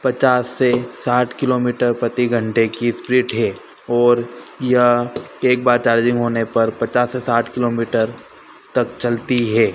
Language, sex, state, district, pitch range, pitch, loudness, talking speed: Hindi, male, Madhya Pradesh, Dhar, 120-125 Hz, 120 Hz, -18 LUFS, 140 wpm